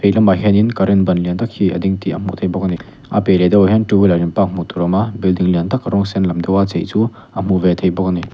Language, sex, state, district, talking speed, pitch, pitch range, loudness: Mizo, male, Mizoram, Aizawl, 315 wpm, 95 Hz, 90-100 Hz, -15 LUFS